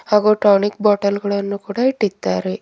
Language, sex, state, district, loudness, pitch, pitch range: Kannada, female, Karnataka, Bidar, -17 LUFS, 200 Hz, 200-210 Hz